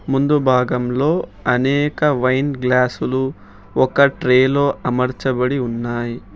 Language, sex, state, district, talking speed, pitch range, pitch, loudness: Telugu, male, Telangana, Hyderabad, 95 wpm, 125-140 Hz, 130 Hz, -18 LUFS